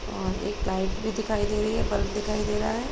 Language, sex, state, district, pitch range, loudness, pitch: Hindi, female, Uttar Pradesh, Muzaffarnagar, 210-215 Hz, -28 LUFS, 210 Hz